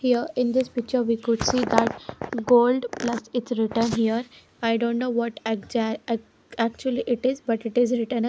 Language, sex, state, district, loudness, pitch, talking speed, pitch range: English, female, Haryana, Jhajjar, -24 LUFS, 235 Hz, 195 wpm, 230-245 Hz